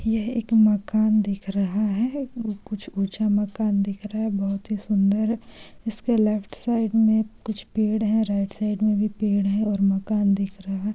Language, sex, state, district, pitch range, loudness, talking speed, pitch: Hindi, female, Bihar, Saran, 200-220 Hz, -24 LUFS, 180 wpm, 210 Hz